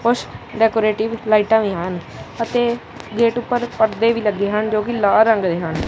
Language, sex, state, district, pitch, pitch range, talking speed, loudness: Punjabi, male, Punjab, Kapurthala, 220 Hz, 210-230 Hz, 185 wpm, -18 LUFS